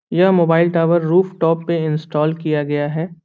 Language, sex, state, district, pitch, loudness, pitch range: Hindi, male, Bihar, Saran, 165 Hz, -17 LUFS, 155-170 Hz